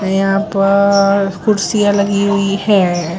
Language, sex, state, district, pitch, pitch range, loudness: Hindi, female, Gujarat, Valsad, 200 Hz, 195-200 Hz, -13 LUFS